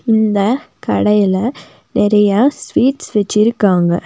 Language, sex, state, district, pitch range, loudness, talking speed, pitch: Tamil, female, Tamil Nadu, Nilgiris, 200-240 Hz, -14 LUFS, 75 wpm, 210 Hz